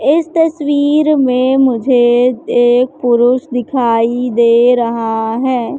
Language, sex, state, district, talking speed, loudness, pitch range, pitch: Hindi, female, Madhya Pradesh, Katni, 105 wpm, -12 LUFS, 240-270 Hz, 250 Hz